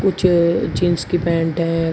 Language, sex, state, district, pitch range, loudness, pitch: Hindi, male, Uttar Pradesh, Shamli, 165-175 Hz, -18 LUFS, 170 Hz